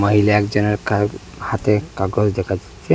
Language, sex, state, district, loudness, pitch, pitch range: Bengali, male, Assam, Hailakandi, -19 LUFS, 105 Hz, 100-105 Hz